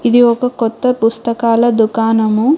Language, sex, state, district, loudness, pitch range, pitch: Telugu, female, Telangana, Hyderabad, -13 LUFS, 225-245 Hz, 235 Hz